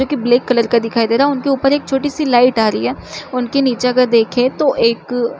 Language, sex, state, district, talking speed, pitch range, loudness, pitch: Chhattisgarhi, female, Chhattisgarh, Jashpur, 255 wpm, 235-275 Hz, -15 LUFS, 250 Hz